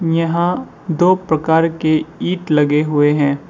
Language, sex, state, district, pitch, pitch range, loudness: Hindi, male, Assam, Sonitpur, 160 Hz, 150-170 Hz, -16 LUFS